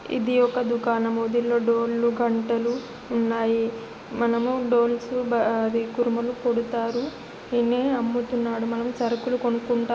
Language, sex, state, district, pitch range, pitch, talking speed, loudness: Telugu, female, Telangana, Nalgonda, 235-245 Hz, 235 Hz, 105 wpm, -24 LUFS